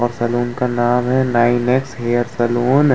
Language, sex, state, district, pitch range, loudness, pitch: Hindi, male, Uttar Pradesh, Muzaffarnagar, 120-125 Hz, -17 LUFS, 120 Hz